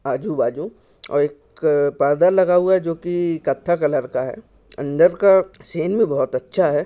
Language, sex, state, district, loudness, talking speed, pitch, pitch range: Hindi, male, Maharashtra, Pune, -19 LUFS, 165 wpm, 170 Hz, 145-185 Hz